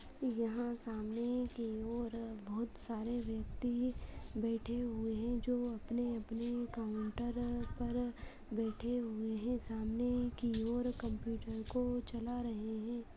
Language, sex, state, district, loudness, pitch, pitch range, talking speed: Hindi, female, Uttarakhand, Tehri Garhwal, -40 LUFS, 235 Hz, 225-240 Hz, 115 wpm